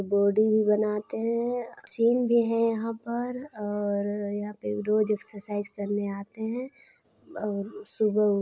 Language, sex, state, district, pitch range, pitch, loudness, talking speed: Hindi, female, Chhattisgarh, Sarguja, 205-230 Hz, 215 Hz, -27 LUFS, 150 wpm